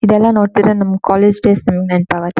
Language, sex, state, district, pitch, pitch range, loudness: Kannada, female, Karnataka, Shimoga, 200 Hz, 185-210 Hz, -13 LUFS